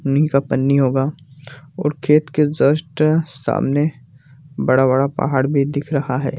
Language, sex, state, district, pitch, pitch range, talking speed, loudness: Hindi, male, Bihar, Jamui, 140 Hz, 135-150 Hz, 150 wpm, -18 LUFS